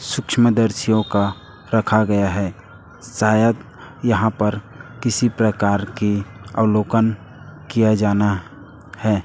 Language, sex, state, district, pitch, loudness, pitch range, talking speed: Hindi, male, Chhattisgarh, Raipur, 110 Hz, -19 LUFS, 100-115 Hz, 95 wpm